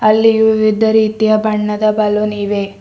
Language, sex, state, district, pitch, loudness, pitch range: Kannada, female, Karnataka, Bidar, 215 Hz, -13 LUFS, 210-220 Hz